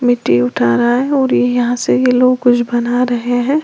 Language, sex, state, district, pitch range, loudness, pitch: Hindi, female, Uttar Pradesh, Lalitpur, 240-255 Hz, -13 LUFS, 245 Hz